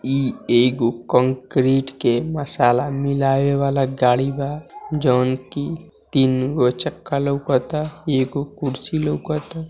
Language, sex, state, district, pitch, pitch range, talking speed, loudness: Hindi, male, Bihar, East Champaran, 135 Hz, 130-145 Hz, 115 wpm, -20 LUFS